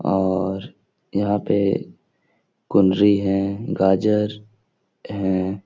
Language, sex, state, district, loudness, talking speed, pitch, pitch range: Hindi, male, Uttar Pradesh, Etah, -21 LUFS, 75 wpm, 100 Hz, 95-105 Hz